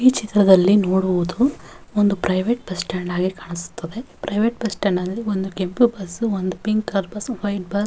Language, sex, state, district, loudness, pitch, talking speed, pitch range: Kannada, female, Karnataka, Bellary, -21 LUFS, 200 Hz, 135 wpm, 185-220 Hz